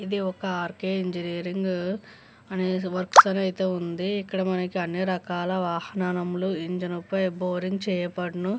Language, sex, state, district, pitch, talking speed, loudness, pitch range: Telugu, female, Andhra Pradesh, Visakhapatnam, 185 Hz, 120 wpm, -26 LUFS, 180-190 Hz